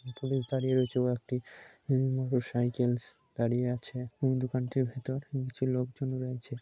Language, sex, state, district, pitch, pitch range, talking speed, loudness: Bengali, male, West Bengal, Kolkata, 130 Hz, 125-130 Hz, 135 wpm, -32 LUFS